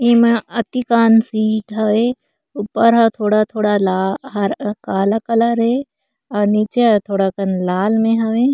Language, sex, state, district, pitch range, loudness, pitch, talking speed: Chhattisgarhi, female, Chhattisgarh, Korba, 205-230 Hz, -16 LUFS, 220 Hz, 135 wpm